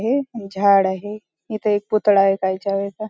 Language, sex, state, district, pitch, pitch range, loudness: Marathi, female, Maharashtra, Nagpur, 205 Hz, 195-215 Hz, -19 LUFS